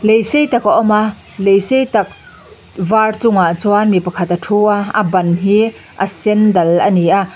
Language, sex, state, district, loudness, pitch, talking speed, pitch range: Mizo, female, Mizoram, Aizawl, -13 LUFS, 205 Hz, 210 wpm, 185-220 Hz